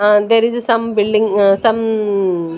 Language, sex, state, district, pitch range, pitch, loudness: English, female, Chandigarh, Chandigarh, 200-225 Hz, 215 Hz, -14 LUFS